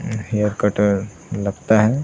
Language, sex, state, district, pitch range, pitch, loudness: Hindi, male, Bihar, Saran, 100-110 Hz, 105 Hz, -20 LUFS